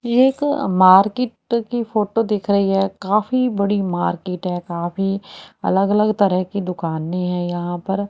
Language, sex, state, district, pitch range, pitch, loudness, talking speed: Hindi, female, Haryana, Rohtak, 180-215 Hz, 195 Hz, -19 LUFS, 150 wpm